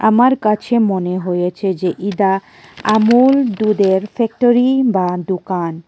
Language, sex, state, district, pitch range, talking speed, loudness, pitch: Bengali, female, Tripura, West Tripura, 185-235 Hz, 110 wpm, -15 LUFS, 200 Hz